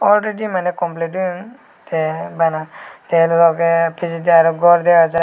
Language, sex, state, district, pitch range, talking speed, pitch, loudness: Chakma, male, Tripura, Dhalai, 165-180 Hz, 150 wpm, 170 Hz, -16 LUFS